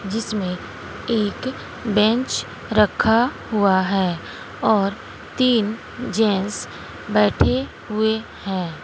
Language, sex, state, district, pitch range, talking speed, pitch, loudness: Hindi, female, Bihar, West Champaran, 195-225 Hz, 80 wpm, 215 Hz, -21 LUFS